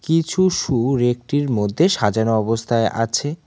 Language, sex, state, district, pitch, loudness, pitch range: Bengali, male, West Bengal, Cooch Behar, 120 Hz, -19 LUFS, 115-155 Hz